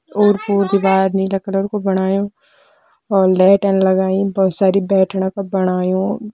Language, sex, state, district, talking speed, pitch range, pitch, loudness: Kumaoni, female, Uttarakhand, Tehri Garhwal, 130 wpm, 190-200 Hz, 195 Hz, -16 LUFS